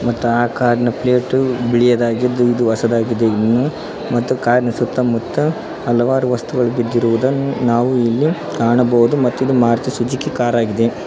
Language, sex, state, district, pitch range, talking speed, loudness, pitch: Kannada, male, Karnataka, Koppal, 120-125 Hz, 135 wpm, -16 LUFS, 120 Hz